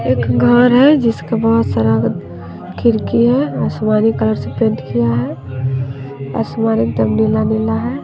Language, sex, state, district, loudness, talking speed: Hindi, female, Bihar, West Champaran, -15 LUFS, 140 wpm